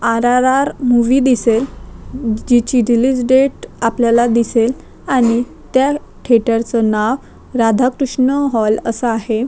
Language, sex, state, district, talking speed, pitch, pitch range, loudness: Marathi, female, Maharashtra, Chandrapur, 120 wpm, 240 Hz, 230-260 Hz, -15 LUFS